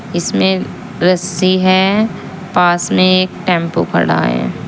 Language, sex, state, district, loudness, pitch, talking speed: Hindi, female, Uttar Pradesh, Saharanpur, -13 LUFS, 175 Hz, 115 wpm